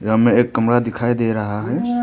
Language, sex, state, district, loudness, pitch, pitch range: Hindi, male, Arunachal Pradesh, Papum Pare, -18 LUFS, 120 Hz, 110-120 Hz